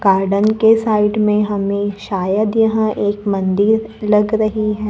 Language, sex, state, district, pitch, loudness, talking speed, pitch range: Hindi, female, Maharashtra, Gondia, 210 Hz, -16 LUFS, 145 wpm, 200-215 Hz